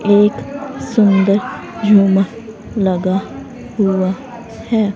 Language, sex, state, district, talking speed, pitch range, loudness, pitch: Hindi, female, Haryana, Rohtak, 75 wpm, 195-225 Hz, -15 LUFS, 205 Hz